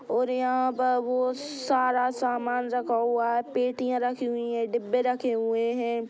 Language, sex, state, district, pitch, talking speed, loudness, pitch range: Hindi, female, Maharashtra, Chandrapur, 245 Hz, 155 wpm, -27 LUFS, 235-255 Hz